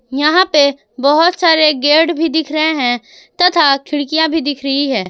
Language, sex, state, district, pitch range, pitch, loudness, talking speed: Hindi, female, Jharkhand, Garhwa, 280-320 Hz, 305 Hz, -13 LUFS, 175 wpm